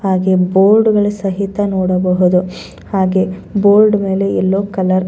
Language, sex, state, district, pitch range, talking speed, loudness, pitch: Kannada, female, Karnataka, Bellary, 185-200 Hz, 130 wpm, -13 LUFS, 190 Hz